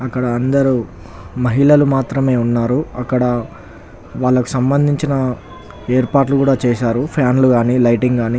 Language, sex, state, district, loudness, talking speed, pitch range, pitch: Telugu, male, Telangana, Nalgonda, -15 LUFS, 115 wpm, 120-135 Hz, 125 Hz